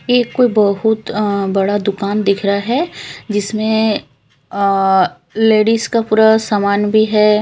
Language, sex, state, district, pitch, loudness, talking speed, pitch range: Hindi, female, Punjab, Fazilka, 210 Hz, -15 LUFS, 140 wpm, 200-220 Hz